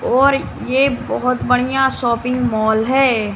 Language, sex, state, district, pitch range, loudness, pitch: Hindi, female, Bihar, West Champaran, 235-265 Hz, -16 LUFS, 250 Hz